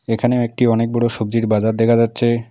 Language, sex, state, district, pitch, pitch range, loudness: Bengali, male, West Bengal, Alipurduar, 115 Hz, 115-120 Hz, -17 LUFS